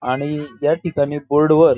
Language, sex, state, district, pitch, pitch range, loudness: Marathi, female, Maharashtra, Dhule, 150 Hz, 145-155 Hz, -18 LUFS